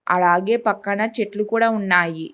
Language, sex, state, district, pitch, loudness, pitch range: Telugu, female, Telangana, Hyderabad, 205 Hz, -19 LUFS, 180-220 Hz